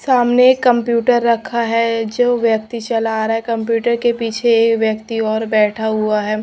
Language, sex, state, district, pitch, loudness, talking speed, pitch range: Hindi, female, Punjab, Pathankot, 230 Hz, -16 LUFS, 185 wpm, 220-235 Hz